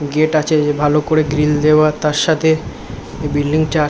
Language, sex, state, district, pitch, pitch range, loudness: Bengali, male, West Bengal, Kolkata, 150 Hz, 150-155 Hz, -15 LUFS